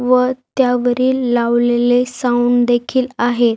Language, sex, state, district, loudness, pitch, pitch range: Marathi, female, Maharashtra, Aurangabad, -15 LUFS, 245 Hz, 240-255 Hz